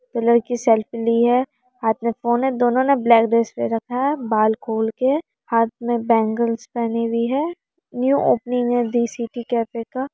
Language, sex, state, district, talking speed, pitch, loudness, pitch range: Hindi, female, Bihar, Araria, 185 wpm, 235 Hz, -20 LUFS, 230-250 Hz